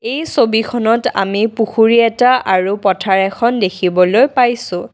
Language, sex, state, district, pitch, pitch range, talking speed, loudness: Assamese, female, Assam, Kamrup Metropolitan, 225 Hz, 195-240 Hz, 120 wpm, -14 LUFS